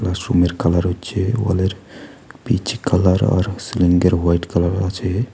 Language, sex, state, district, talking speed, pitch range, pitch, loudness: Bengali, male, West Bengal, Alipurduar, 125 wpm, 90-100 Hz, 90 Hz, -18 LUFS